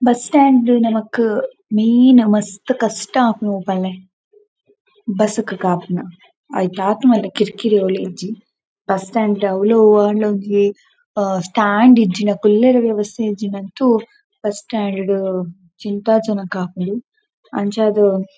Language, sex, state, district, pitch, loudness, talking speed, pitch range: Tulu, female, Karnataka, Dakshina Kannada, 210 Hz, -16 LUFS, 120 wpm, 195-235 Hz